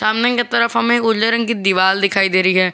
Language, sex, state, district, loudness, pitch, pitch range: Hindi, male, Jharkhand, Garhwa, -15 LUFS, 220 Hz, 190-235 Hz